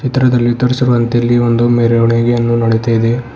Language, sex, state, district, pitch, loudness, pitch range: Kannada, male, Karnataka, Bidar, 120 Hz, -12 LUFS, 115-120 Hz